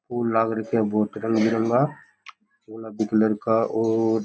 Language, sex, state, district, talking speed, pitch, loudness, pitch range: Rajasthani, male, Rajasthan, Nagaur, 170 wpm, 110 Hz, -23 LUFS, 110-115 Hz